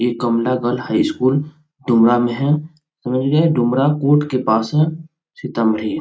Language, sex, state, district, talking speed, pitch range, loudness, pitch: Hindi, male, Bihar, Sitamarhi, 170 wpm, 120-150 Hz, -17 LUFS, 130 Hz